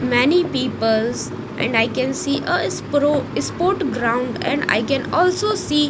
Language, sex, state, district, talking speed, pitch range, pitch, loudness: English, female, Odisha, Nuapada, 140 wpm, 245-350 Hz, 290 Hz, -19 LUFS